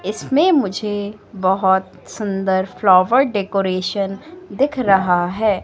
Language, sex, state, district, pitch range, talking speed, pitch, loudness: Hindi, female, Madhya Pradesh, Katni, 190-220 Hz, 95 wpm, 200 Hz, -18 LUFS